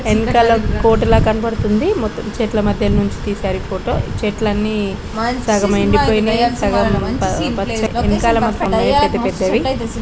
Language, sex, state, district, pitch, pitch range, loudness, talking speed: Telugu, female, Telangana, Nalgonda, 220 Hz, 210-230 Hz, -16 LUFS, 125 wpm